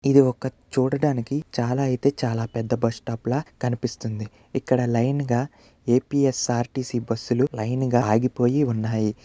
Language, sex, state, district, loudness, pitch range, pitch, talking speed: Telugu, male, Andhra Pradesh, Visakhapatnam, -24 LUFS, 115-130 Hz, 125 Hz, 130 wpm